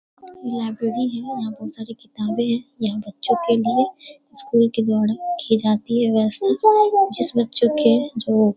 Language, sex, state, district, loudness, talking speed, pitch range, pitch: Hindi, female, Bihar, Darbhanga, -20 LUFS, 170 wpm, 220-265 Hz, 235 Hz